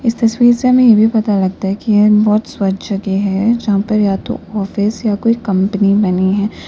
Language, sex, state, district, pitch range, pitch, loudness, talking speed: Hindi, female, Uttar Pradesh, Lalitpur, 195-225 Hz, 210 Hz, -14 LUFS, 215 wpm